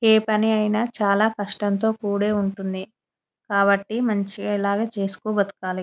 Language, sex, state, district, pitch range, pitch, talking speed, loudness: Telugu, female, Telangana, Nalgonda, 200-220 Hz, 205 Hz, 115 wpm, -22 LUFS